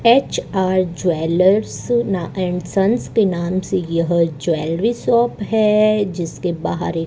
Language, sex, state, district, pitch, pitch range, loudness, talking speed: Hindi, female, Rajasthan, Bikaner, 185 Hz, 170-215 Hz, -18 LUFS, 125 wpm